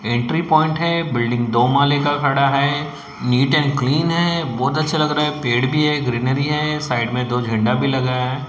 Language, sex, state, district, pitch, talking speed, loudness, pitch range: Hindi, male, Maharashtra, Mumbai Suburban, 140 Hz, 210 wpm, -18 LUFS, 125-150 Hz